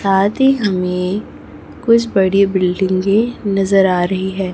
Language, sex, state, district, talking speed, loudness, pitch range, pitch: Hindi, female, Chhattisgarh, Raipur, 145 wpm, -15 LUFS, 185-205 Hz, 195 Hz